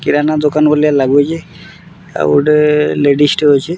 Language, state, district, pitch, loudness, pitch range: Sambalpuri, Odisha, Sambalpur, 150 Hz, -11 LUFS, 145-160 Hz